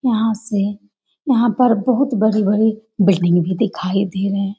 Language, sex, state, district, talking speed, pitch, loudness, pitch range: Hindi, female, Bihar, Jamui, 155 wpm, 215 Hz, -17 LUFS, 195-225 Hz